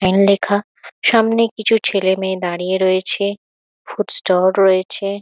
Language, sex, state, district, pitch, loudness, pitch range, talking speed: Bengali, female, West Bengal, Kolkata, 195 Hz, -16 LUFS, 190-210 Hz, 125 wpm